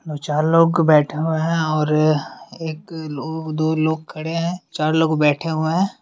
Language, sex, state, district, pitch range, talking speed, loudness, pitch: Hindi, male, Bihar, Bhagalpur, 155-165 Hz, 180 wpm, -19 LUFS, 160 Hz